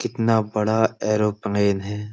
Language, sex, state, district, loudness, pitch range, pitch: Hindi, male, Uttar Pradesh, Budaun, -22 LUFS, 105-110 Hz, 105 Hz